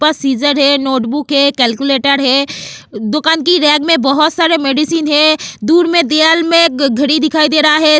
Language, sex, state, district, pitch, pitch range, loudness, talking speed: Hindi, female, Goa, North and South Goa, 300 Hz, 280-315 Hz, -11 LUFS, 155 wpm